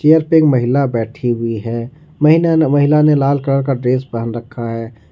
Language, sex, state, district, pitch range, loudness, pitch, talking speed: Hindi, male, Jharkhand, Ranchi, 115-150 Hz, -15 LUFS, 135 Hz, 200 wpm